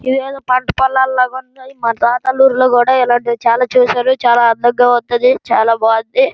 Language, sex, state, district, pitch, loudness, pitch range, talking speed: Telugu, female, Andhra Pradesh, Srikakulam, 250 Hz, -13 LUFS, 240-260 Hz, 140 wpm